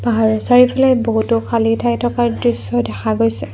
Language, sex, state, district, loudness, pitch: Assamese, female, Assam, Kamrup Metropolitan, -15 LUFS, 225 Hz